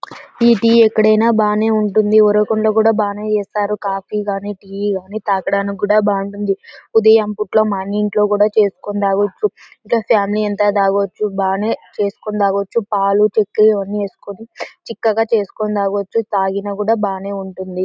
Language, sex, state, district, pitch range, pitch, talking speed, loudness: Telugu, female, Andhra Pradesh, Anantapur, 200-215 Hz, 210 Hz, 145 wpm, -16 LUFS